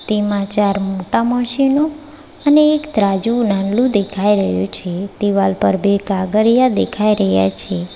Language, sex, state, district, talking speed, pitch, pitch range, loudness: Gujarati, female, Gujarat, Valsad, 135 wpm, 205 Hz, 195-245 Hz, -16 LUFS